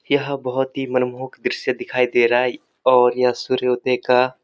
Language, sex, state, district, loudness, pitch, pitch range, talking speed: Hindi, male, Uttarakhand, Uttarkashi, -19 LUFS, 125 Hz, 125-130 Hz, 190 wpm